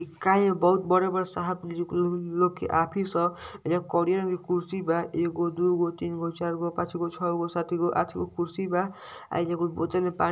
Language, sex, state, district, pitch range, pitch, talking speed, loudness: Bhojpuri, male, Uttar Pradesh, Ghazipur, 170-180 Hz, 175 Hz, 220 wpm, -27 LUFS